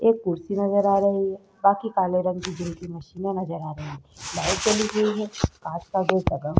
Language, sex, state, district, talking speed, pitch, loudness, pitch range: Hindi, female, Uttar Pradesh, Jalaun, 225 wpm, 190 Hz, -24 LUFS, 175-200 Hz